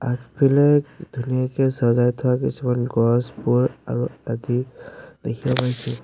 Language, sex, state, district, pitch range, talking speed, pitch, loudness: Assamese, male, Assam, Sonitpur, 120-135 Hz, 100 wpm, 125 Hz, -21 LUFS